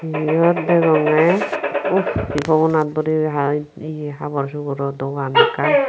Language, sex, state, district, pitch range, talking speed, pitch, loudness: Chakma, female, Tripura, Unakoti, 145-165 Hz, 110 wpm, 155 Hz, -18 LUFS